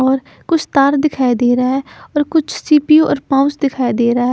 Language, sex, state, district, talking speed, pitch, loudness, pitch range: Hindi, female, Chandigarh, Chandigarh, 195 wpm, 275 Hz, -14 LUFS, 255-295 Hz